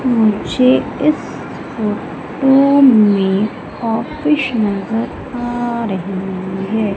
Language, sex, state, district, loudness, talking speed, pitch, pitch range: Hindi, female, Madhya Pradesh, Umaria, -16 LUFS, 75 wpm, 225 Hz, 205-255 Hz